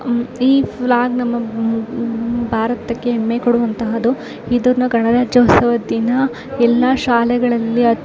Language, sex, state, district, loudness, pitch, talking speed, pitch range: Kannada, female, Karnataka, Raichur, -16 LUFS, 240 Hz, 90 wpm, 230-245 Hz